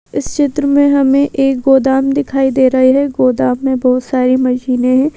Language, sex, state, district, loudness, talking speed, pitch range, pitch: Hindi, female, Madhya Pradesh, Bhopal, -12 LUFS, 185 wpm, 255-280 Hz, 265 Hz